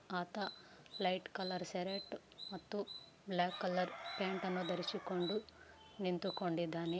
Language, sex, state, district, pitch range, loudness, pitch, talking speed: Kannada, female, Karnataka, Raichur, 180-195 Hz, -41 LUFS, 185 Hz, 95 wpm